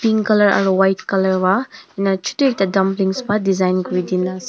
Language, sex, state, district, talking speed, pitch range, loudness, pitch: Nagamese, female, Nagaland, Dimapur, 200 wpm, 185-210 Hz, -17 LUFS, 195 Hz